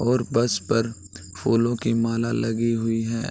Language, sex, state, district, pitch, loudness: Hindi, male, Bihar, Gopalganj, 115 Hz, -23 LUFS